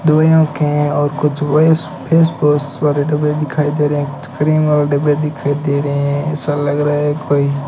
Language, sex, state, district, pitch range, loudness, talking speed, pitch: Hindi, male, Rajasthan, Bikaner, 145-150 Hz, -15 LUFS, 205 wpm, 150 Hz